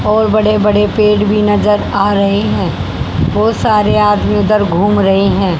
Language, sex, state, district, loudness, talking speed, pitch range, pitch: Hindi, female, Haryana, Jhajjar, -12 LUFS, 170 wpm, 200-210 Hz, 210 Hz